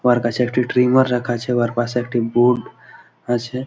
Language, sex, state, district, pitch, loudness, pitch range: Bengali, male, West Bengal, Malda, 125 Hz, -18 LUFS, 120-125 Hz